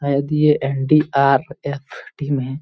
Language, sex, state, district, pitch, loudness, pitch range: Hindi, male, Jharkhand, Jamtara, 140 Hz, -18 LUFS, 135-150 Hz